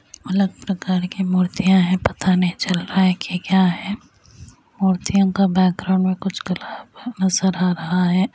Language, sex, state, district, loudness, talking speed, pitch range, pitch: Hindi, female, Uttar Pradesh, Hamirpur, -19 LUFS, 160 wpm, 180-195 Hz, 185 Hz